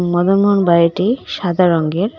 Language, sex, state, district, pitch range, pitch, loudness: Bengali, female, West Bengal, Cooch Behar, 170-195 Hz, 180 Hz, -14 LUFS